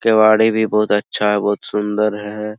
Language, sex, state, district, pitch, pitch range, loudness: Hindi, male, Bihar, Araria, 105 Hz, 105-110 Hz, -16 LUFS